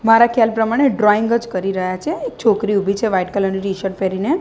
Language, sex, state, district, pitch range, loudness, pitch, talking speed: Gujarati, female, Gujarat, Gandhinagar, 195-230 Hz, -17 LUFS, 210 Hz, 230 wpm